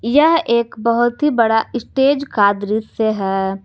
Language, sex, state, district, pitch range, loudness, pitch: Hindi, female, Jharkhand, Garhwa, 215-250 Hz, -16 LUFS, 230 Hz